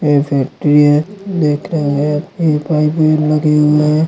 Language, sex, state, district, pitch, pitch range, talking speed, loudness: Hindi, male, Maharashtra, Dhule, 150 Hz, 150-155 Hz, 160 wpm, -13 LUFS